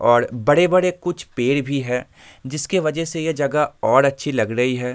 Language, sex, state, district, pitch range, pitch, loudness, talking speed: Hindi, male, Jharkhand, Sahebganj, 125-160 Hz, 140 Hz, -20 LUFS, 220 wpm